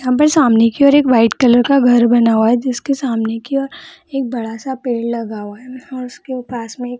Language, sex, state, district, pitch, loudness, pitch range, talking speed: Hindi, female, Bihar, Jamui, 245 Hz, -14 LUFS, 230-265 Hz, 255 wpm